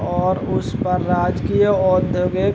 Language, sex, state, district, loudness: Hindi, male, Chhattisgarh, Bilaspur, -18 LUFS